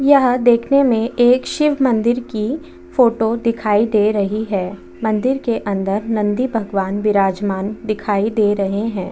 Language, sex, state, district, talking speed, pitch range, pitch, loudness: Hindi, female, Chhattisgarh, Bastar, 145 wpm, 205-245 Hz, 220 Hz, -17 LUFS